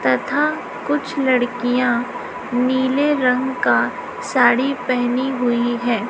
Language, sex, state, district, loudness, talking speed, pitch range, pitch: Hindi, female, Chhattisgarh, Raipur, -19 LUFS, 100 wpm, 245-270 Hz, 250 Hz